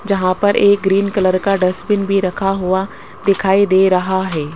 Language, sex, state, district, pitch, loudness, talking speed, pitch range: Hindi, male, Rajasthan, Jaipur, 195 Hz, -15 LUFS, 185 wpm, 185-200 Hz